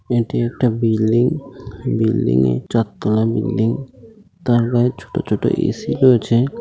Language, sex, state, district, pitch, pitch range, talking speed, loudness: Bengali, male, West Bengal, North 24 Parganas, 115 Hz, 110-125 Hz, 155 wpm, -18 LUFS